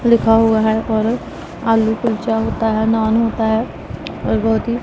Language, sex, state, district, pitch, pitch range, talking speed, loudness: Hindi, female, Punjab, Pathankot, 225 Hz, 220-230 Hz, 175 wpm, -17 LUFS